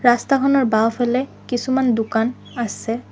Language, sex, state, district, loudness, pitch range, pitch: Assamese, female, Assam, Sonitpur, -19 LUFS, 225-260 Hz, 245 Hz